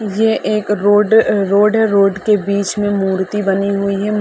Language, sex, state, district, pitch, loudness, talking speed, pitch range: Hindi, female, Uttar Pradesh, Gorakhpur, 205 Hz, -14 LUFS, 185 wpm, 200-210 Hz